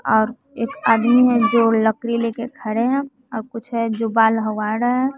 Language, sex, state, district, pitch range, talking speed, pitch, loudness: Hindi, female, Bihar, West Champaran, 225-245 Hz, 195 wpm, 230 Hz, -19 LUFS